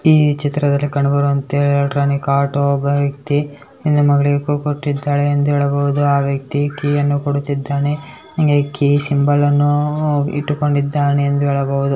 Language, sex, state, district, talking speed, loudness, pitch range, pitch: Kannada, male, Karnataka, Bellary, 130 wpm, -16 LUFS, 140-145 Hz, 145 Hz